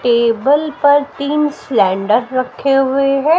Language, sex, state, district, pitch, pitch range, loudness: Hindi, female, Haryana, Jhajjar, 275 Hz, 240-290 Hz, -14 LUFS